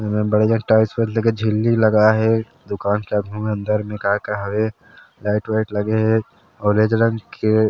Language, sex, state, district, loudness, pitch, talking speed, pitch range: Chhattisgarhi, male, Chhattisgarh, Sarguja, -19 LUFS, 110 Hz, 195 wpm, 105-110 Hz